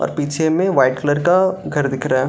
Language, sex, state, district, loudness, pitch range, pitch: Hindi, male, Bihar, Gaya, -17 LUFS, 135-175 Hz, 145 Hz